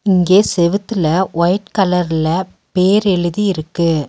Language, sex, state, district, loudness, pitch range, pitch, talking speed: Tamil, female, Tamil Nadu, Nilgiris, -15 LUFS, 170-195 Hz, 180 Hz, 105 wpm